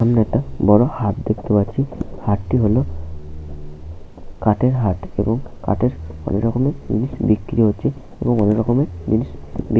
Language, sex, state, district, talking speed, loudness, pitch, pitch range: Bengali, male, West Bengal, Paschim Medinipur, 140 wpm, -19 LUFS, 105 Hz, 90-120 Hz